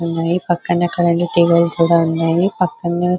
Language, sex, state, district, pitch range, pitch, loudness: Telugu, female, Telangana, Nalgonda, 170-175 Hz, 170 Hz, -16 LUFS